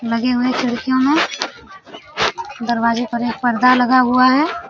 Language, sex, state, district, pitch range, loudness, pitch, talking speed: Hindi, female, Jharkhand, Sahebganj, 235-260 Hz, -16 LUFS, 250 Hz, 155 wpm